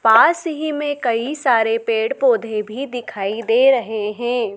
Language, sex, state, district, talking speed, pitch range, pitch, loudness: Hindi, female, Madhya Pradesh, Dhar, 155 wpm, 225-295 Hz, 240 Hz, -18 LUFS